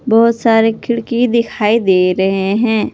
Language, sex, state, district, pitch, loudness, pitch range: Hindi, female, Jharkhand, Palamu, 225 Hz, -13 LUFS, 205-235 Hz